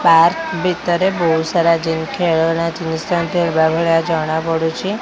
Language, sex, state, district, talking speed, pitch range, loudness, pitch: Odia, female, Odisha, Khordha, 130 wpm, 160-175 Hz, -16 LUFS, 165 Hz